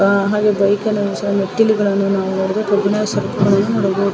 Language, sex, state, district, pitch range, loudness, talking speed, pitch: Kannada, female, Karnataka, Shimoga, 195-210 Hz, -16 LUFS, 145 wpm, 200 Hz